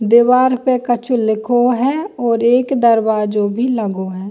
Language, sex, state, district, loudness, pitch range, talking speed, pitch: Bhojpuri, female, Bihar, East Champaran, -15 LUFS, 220-250 Hz, 155 wpm, 240 Hz